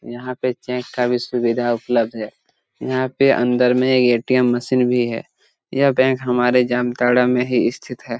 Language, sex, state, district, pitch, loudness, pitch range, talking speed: Hindi, male, Jharkhand, Jamtara, 125 Hz, -18 LUFS, 120-130 Hz, 185 wpm